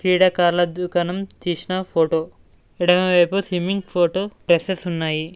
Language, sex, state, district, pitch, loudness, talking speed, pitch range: Telugu, male, Telangana, Mahabubabad, 180 Hz, -20 LUFS, 125 wpm, 175-185 Hz